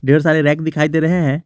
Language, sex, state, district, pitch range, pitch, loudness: Hindi, male, Jharkhand, Garhwa, 145-160 Hz, 155 Hz, -15 LUFS